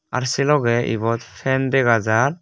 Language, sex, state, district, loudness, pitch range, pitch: Chakma, male, Tripura, West Tripura, -19 LUFS, 115-135 Hz, 120 Hz